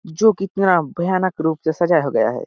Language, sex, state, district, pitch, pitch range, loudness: Hindi, male, Chhattisgarh, Sarguja, 175 Hz, 160-190 Hz, -18 LUFS